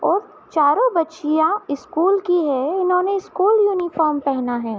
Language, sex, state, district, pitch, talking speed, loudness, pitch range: Hindi, female, Uttar Pradesh, Hamirpur, 345 Hz, 135 wpm, -19 LUFS, 295-395 Hz